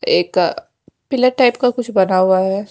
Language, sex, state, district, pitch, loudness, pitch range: Hindi, female, Haryana, Jhajjar, 240 Hz, -15 LUFS, 190-255 Hz